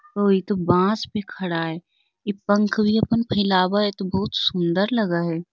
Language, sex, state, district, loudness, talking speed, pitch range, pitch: Magahi, female, Bihar, Lakhisarai, -22 LUFS, 215 wpm, 180-210 Hz, 200 Hz